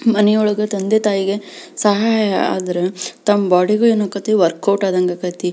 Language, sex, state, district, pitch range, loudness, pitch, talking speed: Kannada, female, Karnataka, Belgaum, 180-210 Hz, -16 LUFS, 200 Hz, 150 wpm